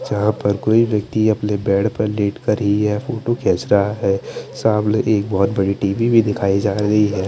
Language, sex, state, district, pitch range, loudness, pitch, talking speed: Hindi, male, Chandigarh, Chandigarh, 100-110 Hz, -18 LUFS, 105 Hz, 205 wpm